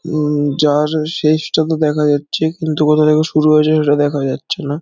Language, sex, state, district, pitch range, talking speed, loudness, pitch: Bengali, male, West Bengal, Dakshin Dinajpur, 145-155 Hz, 185 wpm, -15 LUFS, 155 Hz